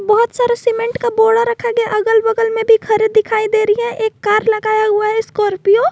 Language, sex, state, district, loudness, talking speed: Hindi, female, Jharkhand, Garhwa, -14 LUFS, 235 wpm